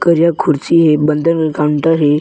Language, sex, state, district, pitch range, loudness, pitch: Chhattisgarhi, male, Chhattisgarh, Bilaspur, 150-165 Hz, -13 LUFS, 160 Hz